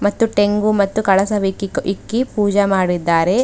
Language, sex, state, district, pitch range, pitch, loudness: Kannada, female, Karnataka, Bidar, 195-215 Hz, 205 Hz, -17 LUFS